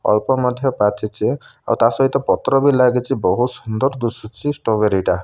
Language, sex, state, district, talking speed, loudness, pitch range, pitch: Odia, male, Odisha, Malkangiri, 150 wpm, -18 LUFS, 110-135 Hz, 125 Hz